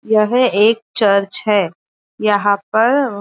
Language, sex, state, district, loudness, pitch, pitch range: Hindi, female, Maharashtra, Aurangabad, -15 LUFS, 215 Hz, 205-225 Hz